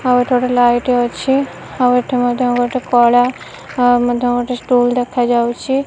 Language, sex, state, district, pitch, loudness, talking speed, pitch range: Odia, female, Odisha, Nuapada, 245 Hz, -15 LUFS, 155 wpm, 245-250 Hz